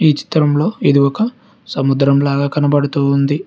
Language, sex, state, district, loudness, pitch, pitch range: Telugu, male, Telangana, Hyderabad, -15 LUFS, 140 Hz, 140-150 Hz